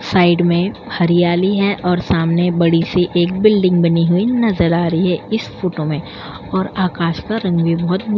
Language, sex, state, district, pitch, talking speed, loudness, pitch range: Hindi, female, Uttar Pradesh, Jalaun, 175 Hz, 185 wpm, -16 LUFS, 170-190 Hz